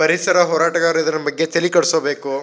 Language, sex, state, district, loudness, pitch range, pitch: Kannada, male, Karnataka, Shimoga, -17 LUFS, 155-170 Hz, 165 Hz